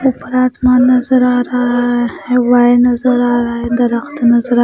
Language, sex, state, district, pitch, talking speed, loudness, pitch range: Hindi, female, Punjab, Pathankot, 245 Hz, 195 wpm, -12 LUFS, 240-250 Hz